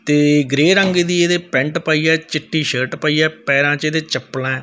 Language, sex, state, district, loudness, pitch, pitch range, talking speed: Punjabi, male, Punjab, Fazilka, -16 LUFS, 155 Hz, 145-160 Hz, 210 wpm